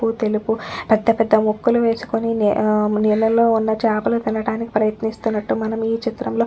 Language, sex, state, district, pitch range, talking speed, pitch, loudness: Telugu, female, Telangana, Nalgonda, 215-230 Hz, 130 wpm, 220 Hz, -19 LUFS